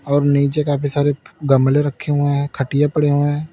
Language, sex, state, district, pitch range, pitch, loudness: Hindi, male, Uttar Pradesh, Lalitpur, 140-145 Hz, 145 Hz, -17 LUFS